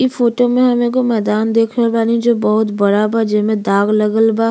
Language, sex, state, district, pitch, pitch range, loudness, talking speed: Bhojpuri, female, Uttar Pradesh, Gorakhpur, 225 Hz, 210-235 Hz, -14 LUFS, 225 wpm